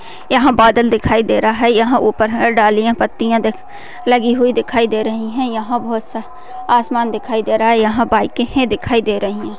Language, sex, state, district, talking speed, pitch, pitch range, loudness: Hindi, female, Bihar, Begusarai, 200 wpm, 230 Hz, 220-245 Hz, -14 LUFS